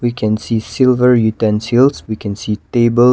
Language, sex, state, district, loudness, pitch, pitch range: English, male, Nagaland, Kohima, -15 LUFS, 115 Hz, 110-125 Hz